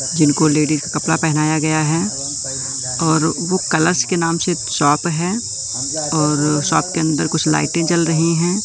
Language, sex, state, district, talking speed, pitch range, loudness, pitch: Hindi, male, Madhya Pradesh, Katni, 165 wpm, 150-165 Hz, -17 LUFS, 155 Hz